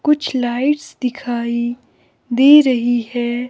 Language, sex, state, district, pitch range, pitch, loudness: Hindi, female, Himachal Pradesh, Shimla, 240-275 Hz, 250 Hz, -16 LUFS